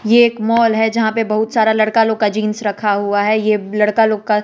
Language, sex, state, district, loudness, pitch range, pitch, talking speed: Hindi, female, Bihar, West Champaran, -15 LUFS, 210-225 Hz, 215 Hz, 255 wpm